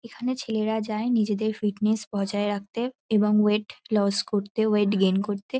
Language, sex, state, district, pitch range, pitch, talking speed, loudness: Bengali, female, West Bengal, North 24 Parganas, 205-220 Hz, 210 Hz, 150 wpm, -25 LUFS